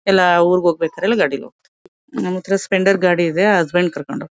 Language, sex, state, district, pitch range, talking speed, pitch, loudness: Kannada, female, Karnataka, Mysore, 170-190 Hz, 165 wpm, 180 Hz, -16 LUFS